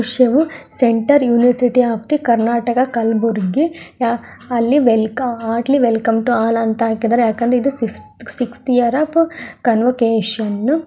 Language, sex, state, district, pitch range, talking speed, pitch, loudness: Kannada, female, Karnataka, Gulbarga, 230-255 Hz, 115 wpm, 240 Hz, -16 LUFS